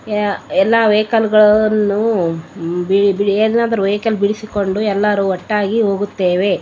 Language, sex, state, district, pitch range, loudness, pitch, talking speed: Kannada, female, Karnataka, Bellary, 195-215 Hz, -15 LUFS, 205 Hz, 120 wpm